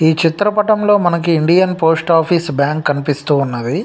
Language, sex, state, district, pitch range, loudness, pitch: Telugu, male, Telangana, Nalgonda, 145-180 Hz, -14 LUFS, 165 Hz